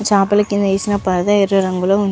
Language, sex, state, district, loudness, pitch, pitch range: Telugu, male, Andhra Pradesh, Visakhapatnam, -15 LUFS, 200 Hz, 195-205 Hz